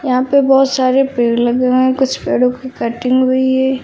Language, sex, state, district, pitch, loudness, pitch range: Hindi, female, Uttar Pradesh, Lucknow, 260 Hz, -14 LUFS, 255-265 Hz